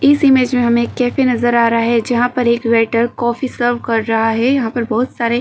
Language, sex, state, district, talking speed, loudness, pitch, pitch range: Hindi, female, Uttar Pradesh, Jyotiba Phule Nagar, 265 wpm, -15 LUFS, 240 Hz, 230-250 Hz